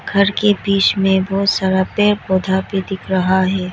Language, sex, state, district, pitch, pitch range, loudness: Hindi, female, Arunachal Pradesh, Lower Dibang Valley, 195 Hz, 190-200 Hz, -16 LUFS